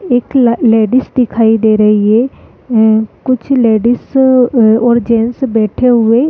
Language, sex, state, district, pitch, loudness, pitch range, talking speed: Hindi, female, Uttarakhand, Uttarkashi, 235 Hz, -10 LUFS, 220-255 Hz, 135 wpm